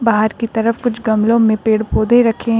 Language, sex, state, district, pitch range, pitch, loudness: Hindi, female, Uttar Pradesh, Shamli, 220-230 Hz, 225 Hz, -15 LUFS